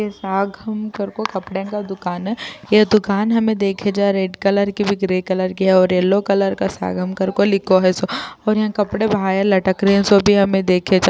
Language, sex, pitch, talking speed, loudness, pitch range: Urdu, female, 195 Hz, 230 wpm, -17 LUFS, 185-205 Hz